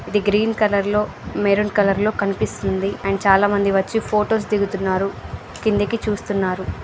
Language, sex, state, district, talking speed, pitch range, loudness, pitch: Telugu, female, Andhra Pradesh, Srikakulam, 140 wpm, 195-210 Hz, -20 LUFS, 205 Hz